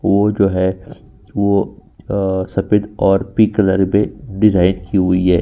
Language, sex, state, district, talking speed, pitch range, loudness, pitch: Hindi, male, Uttar Pradesh, Jyotiba Phule Nagar, 155 wpm, 95-105 Hz, -16 LUFS, 95 Hz